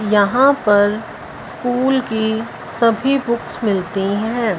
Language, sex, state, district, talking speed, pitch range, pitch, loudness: Hindi, female, Punjab, Fazilka, 105 wpm, 205-245 Hz, 225 Hz, -17 LUFS